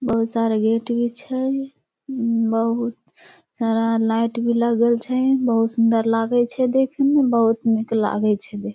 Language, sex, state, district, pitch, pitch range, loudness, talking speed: Maithili, female, Bihar, Samastipur, 230 Hz, 225-250 Hz, -20 LUFS, 160 wpm